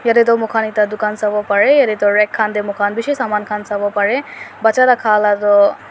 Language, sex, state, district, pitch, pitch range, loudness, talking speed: Nagamese, female, Nagaland, Dimapur, 215 Hz, 210-230 Hz, -15 LUFS, 205 wpm